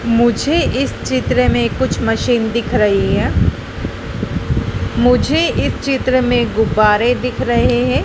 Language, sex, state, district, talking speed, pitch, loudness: Hindi, female, Madhya Pradesh, Dhar, 125 wpm, 215 Hz, -15 LUFS